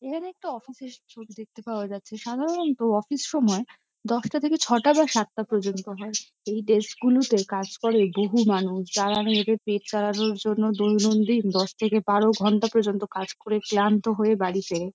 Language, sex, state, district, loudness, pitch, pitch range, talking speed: Bengali, female, West Bengal, Kolkata, -24 LUFS, 215 Hz, 205-230 Hz, 165 wpm